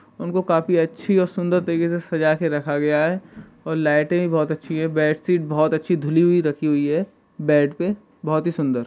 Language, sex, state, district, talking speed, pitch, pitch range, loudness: Hindi, male, Uttar Pradesh, Jalaun, 215 wpm, 160 Hz, 150-175 Hz, -21 LUFS